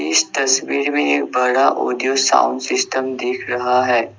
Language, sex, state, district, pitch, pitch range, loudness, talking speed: Hindi, male, Assam, Sonitpur, 125 Hz, 125-135 Hz, -17 LUFS, 160 wpm